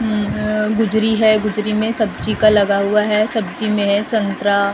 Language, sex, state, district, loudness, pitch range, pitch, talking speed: Hindi, female, Maharashtra, Gondia, -16 LUFS, 205-220 Hz, 215 Hz, 205 wpm